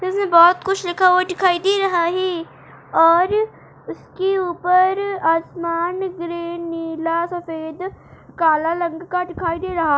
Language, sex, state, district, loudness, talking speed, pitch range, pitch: Hindi, female, Uttar Pradesh, Etah, -19 LUFS, 140 wpm, 335-370 Hz, 350 Hz